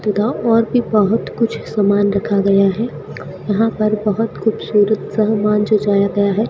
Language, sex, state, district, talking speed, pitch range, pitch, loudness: Hindi, female, Rajasthan, Bikaner, 155 wpm, 205-220 Hz, 210 Hz, -16 LUFS